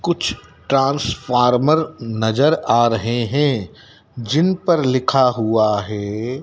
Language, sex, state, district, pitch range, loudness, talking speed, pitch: Hindi, male, Madhya Pradesh, Dhar, 110-140 Hz, -18 LUFS, 105 wpm, 125 Hz